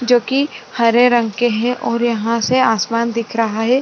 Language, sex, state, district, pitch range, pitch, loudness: Hindi, female, Chhattisgarh, Rajnandgaon, 230-245 Hz, 235 Hz, -16 LUFS